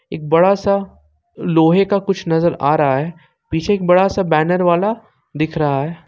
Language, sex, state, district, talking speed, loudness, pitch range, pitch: Hindi, male, Jharkhand, Ranchi, 185 wpm, -16 LUFS, 155-195 Hz, 170 Hz